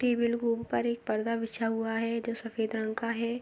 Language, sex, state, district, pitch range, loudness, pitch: Hindi, female, Uttar Pradesh, Muzaffarnagar, 225-235 Hz, -31 LUFS, 230 Hz